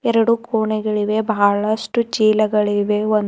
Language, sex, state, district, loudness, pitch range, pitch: Kannada, female, Karnataka, Bidar, -18 LUFS, 210-225 Hz, 215 Hz